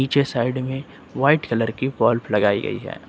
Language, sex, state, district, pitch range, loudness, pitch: Hindi, male, Uttar Pradesh, Lucknow, 115-135 Hz, -21 LUFS, 130 Hz